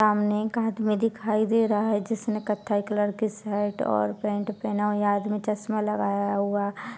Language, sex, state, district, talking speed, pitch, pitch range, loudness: Hindi, female, Bihar, Purnia, 190 wpm, 210 Hz, 205-215 Hz, -26 LUFS